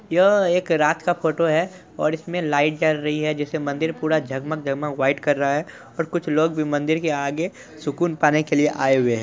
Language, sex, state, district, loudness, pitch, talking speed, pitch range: Hindi, male, Bihar, Supaul, -21 LUFS, 155 Hz, 235 wpm, 145-165 Hz